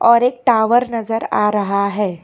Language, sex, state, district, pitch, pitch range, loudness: Hindi, female, Karnataka, Bangalore, 225 Hz, 205-235 Hz, -16 LUFS